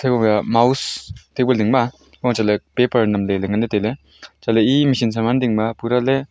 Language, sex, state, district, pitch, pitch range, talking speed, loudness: Wancho, male, Arunachal Pradesh, Longding, 115 Hz, 110-125 Hz, 230 wpm, -18 LUFS